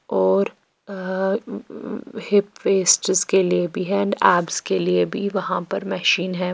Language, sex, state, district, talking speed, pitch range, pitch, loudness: Hindi, female, Bihar, Patna, 155 wpm, 180-200 Hz, 190 Hz, -20 LUFS